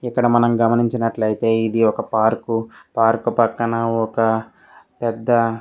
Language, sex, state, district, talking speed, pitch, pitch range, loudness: Telugu, male, Telangana, Karimnagar, 130 wpm, 115 Hz, 115-120 Hz, -19 LUFS